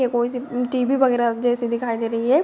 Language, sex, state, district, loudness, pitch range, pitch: Hindi, female, Uttar Pradesh, Deoria, -21 LUFS, 235-255 Hz, 245 Hz